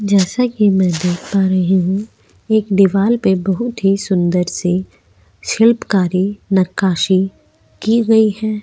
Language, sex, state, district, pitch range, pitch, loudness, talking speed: Hindi, female, Maharashtra, Aurangabad, 185-215 Hz, 195 Hz, -15 LUFS, 130 wpm